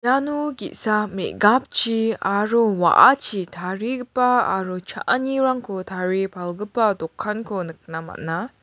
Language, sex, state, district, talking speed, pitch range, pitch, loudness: Garo, female, Meghalaya, West Garo Hills, 90 wpm, 185-245 Hz, 210 Hz, -21 LUFS